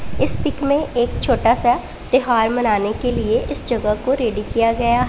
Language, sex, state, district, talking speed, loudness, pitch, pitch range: Hindi, female, Punjab, Pathankot, 190 wpm, -18 LUFS, 240 Hz, 230-255 Hz